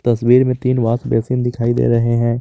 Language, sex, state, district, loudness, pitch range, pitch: Hindi, male, Jharkhand, Garhwa, -16 LUFS, 115-125 Hz, 120 Hz